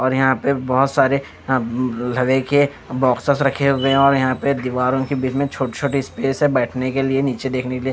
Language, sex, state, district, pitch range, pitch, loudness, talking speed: Hindi, male, Chandigarh, Chandigarh, 130-140 Hz, 135 Hz, -19 LUFS, 210 wpm